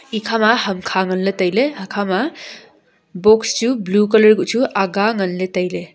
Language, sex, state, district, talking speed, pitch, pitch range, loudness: Wancho, female, Arunachal Pradesh, Longding, 150 wpm, 210 Hz, 190-225 Hz, -17 LUFS